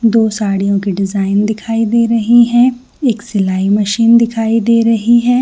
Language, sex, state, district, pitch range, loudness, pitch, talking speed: Hindi, female, Chhattisgarh, Bilaspur, 205-235 Hz, -12 LUFS, 225 Hz, 165 wpm